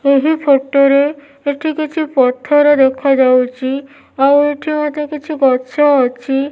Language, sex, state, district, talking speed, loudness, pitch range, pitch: Odia, female, Odisha, Nuapada, 130 wpm, -14 LUFS, 270-295 Hz, 280 Hz